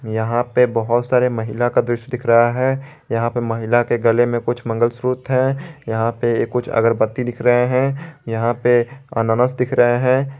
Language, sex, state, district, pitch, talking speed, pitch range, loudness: Hindi, male, Jharkhand, Garhwa, 120 Hz, 190 wpm, 115-125 Hz, -18 LUFS